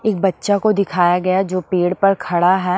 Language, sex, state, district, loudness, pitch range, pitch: Hindi, female, Maharashtra, Washim, -17 LUFS, 180-195 Hz, 185 Hz